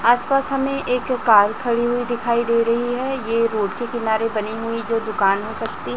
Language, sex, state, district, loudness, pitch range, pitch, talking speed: Hindi, female, Chhattisgarh, Raipur, -20 LUFS, 220-245 Hz, 230 Hz, 210 wpm